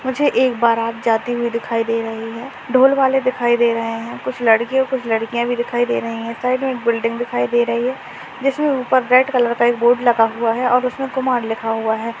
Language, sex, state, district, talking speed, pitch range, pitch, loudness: Hindi, female, Maharashtra, Sindhudurg, 235 wpm, 230-255 Hz, 240 Hz, -18 LUFS